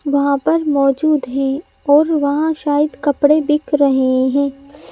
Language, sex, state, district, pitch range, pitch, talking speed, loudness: Hindi, male, Madhya Pradesh, Bhopal, 275-300 Hz, 285 Hz, 135 wpm, -15 LUFS